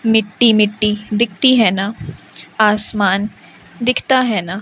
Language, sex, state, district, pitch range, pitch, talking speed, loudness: Hindi, female, Madhya Pradesh, Umaria, 200-230 Hz, 210 Hz, 115 wpm, -15 LUFS